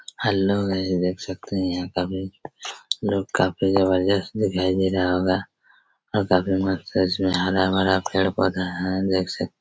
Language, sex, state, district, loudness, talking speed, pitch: Hindi, male, Chhattisgarh, Raigarh, -23 LUFS, 150 wpm, 95 Hz